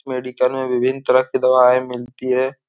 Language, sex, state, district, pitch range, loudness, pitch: Hindi, male, Bihar, Jahanabad, 125-130 Hz, -18 LUFS, 130 Hz